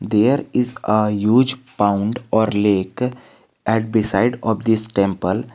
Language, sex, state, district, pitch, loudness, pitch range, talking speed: English, male, Jharkhand, Garhwa, 110 Hz, -18 LUFS, 105-120 Hz, 130 wpm